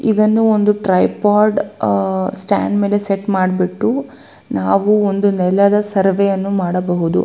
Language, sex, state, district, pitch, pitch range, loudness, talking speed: Kannada, female, Karnataka, Bellary, 200 Hz, 185-210 Hz, -15 LUFS, 110 wpm